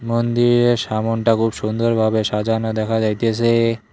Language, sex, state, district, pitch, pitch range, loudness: Bengali, male, West Bengal, Cooch Behar, 115 Hz, 110-115 Hz, -18 LUFS